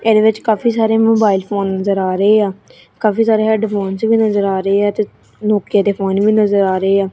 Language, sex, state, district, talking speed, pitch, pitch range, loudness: Punjabi, female, Punjab, Kapurthala, 225 wpm, 205 Hz, 195-220 Hz, -15 LUFS